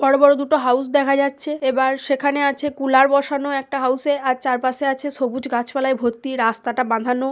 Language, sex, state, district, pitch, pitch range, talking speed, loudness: Bengali, female, West Bengal, Purulia, 270 Hz, 255-280 Hz, 195 wpm, -19 LUFS